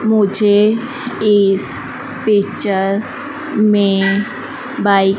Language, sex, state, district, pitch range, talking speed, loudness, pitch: Hindi, female, Madhya Pradesh, Dhar, 200-245 Hz, 70 wpm, -15 LUFS, 210 Hz